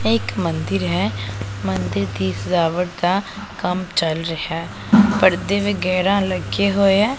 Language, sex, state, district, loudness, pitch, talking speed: Punjabi, female, Punjab, Pathankot, -19 LUFS, 165 Hz, 135 wpm